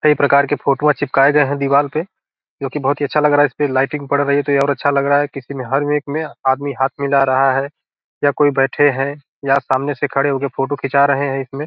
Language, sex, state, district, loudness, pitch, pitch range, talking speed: Hindi, male, Bihar, Gopalganj, -16 LUFS, 140 Hz, 135-145 Hz, 285 wpm